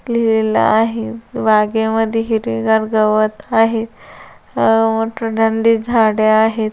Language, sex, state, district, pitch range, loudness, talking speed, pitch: Marathi, female, Maharashtra, Solapur, 220-225 Hz, -15 LUFS, 100 wpm, 225 Hz